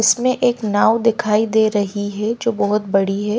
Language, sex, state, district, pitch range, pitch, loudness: Hindi, female, Himachal Pradesh, Shimla, 205-230 Hz, 215 Hz, -17 LUFS